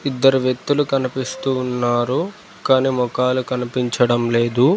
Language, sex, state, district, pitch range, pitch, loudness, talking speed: Telugu, male, Telangana, Mahabubabad, 125-135 Hz, 130 Hz, -19 LUFS, 100 wpm